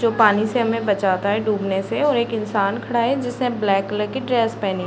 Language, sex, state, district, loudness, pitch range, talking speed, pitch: Hindi, female, Uttar Pradesh, Deoria, -20 LUFS, 200-235 Hz, 245 wpm, 215 Hz